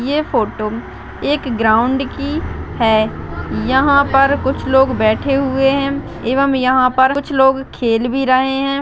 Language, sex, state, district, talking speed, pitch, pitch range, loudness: Hindi, female, Chhattisgarh, Jashpur, 150 wpm, 265 Hz, 245-275 Hz, -15 LUFS